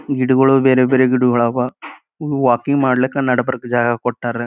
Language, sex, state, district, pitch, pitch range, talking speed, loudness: Kannada, male, Karnataka, Gulbarga, 130 Hz, 120-130 Hz, 135 wpm, -16 LUFS